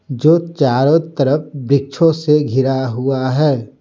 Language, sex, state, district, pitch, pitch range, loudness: Hindi, male, Bihar, Patna, 140 Hz, 135-155 Hz, -15 LUFS